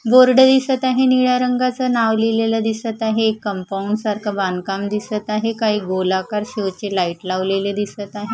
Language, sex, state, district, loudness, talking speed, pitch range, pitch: Marathi, female, Maharashtra, Mumbai Suburban, -18 LUFS, 165 wpm, 200-230 Hz, 215 Hz